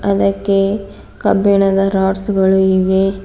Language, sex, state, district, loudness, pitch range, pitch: Kannada, female, Karnataka, Bidar, -14 LUFS, 190-200 Hz, 195 Hz